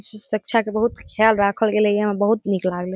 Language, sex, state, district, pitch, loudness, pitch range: Maithili, female, Bihar, Saharsa, 210 Hz, -20 LUFS, 200-220 Hz